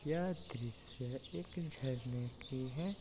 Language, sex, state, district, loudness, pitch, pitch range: Hindi, male, Bihar, East Champaran, -43 LUFS, 130 Hz, 120-160 Hz